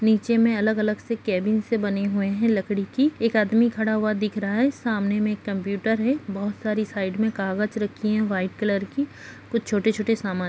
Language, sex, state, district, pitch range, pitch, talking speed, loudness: Hindi, female, Bihar, Madhepura, 200-225 Hz, 215 Hz, 210 wpm, -24 LUFS